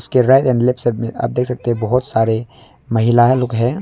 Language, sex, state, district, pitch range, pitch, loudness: Hindi, male, Arunachal Pradesh, Longding, 115-125 Hz, 120 Hz, -16 LUFS